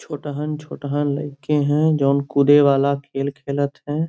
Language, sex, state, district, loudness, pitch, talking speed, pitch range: Bhojpuri, male, Uttar Pradesh, Gorakhpur, -20 LUFS, 145 Hz, 145 wpm, 140-150 Hz